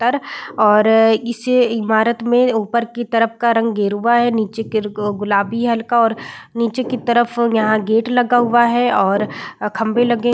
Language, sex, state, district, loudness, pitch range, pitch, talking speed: Hindi, female, Bihar, Saran, -16 LUFS, 220-240 Hz, 230 Hz, 180 wpm